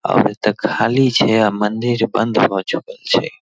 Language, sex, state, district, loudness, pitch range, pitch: Maithili, male, Bihar, Darbhanga, -17 LUFS, 110-135 Hz, 115 Hz